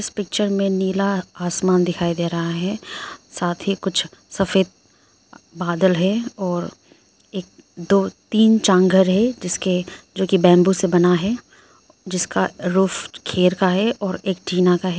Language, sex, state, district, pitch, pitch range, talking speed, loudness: Hindi, female, Arunachal Pradesh, Lower Dibang Valley, 190 Hz, 180-195 Hz, 150 wpm, -19 LUFS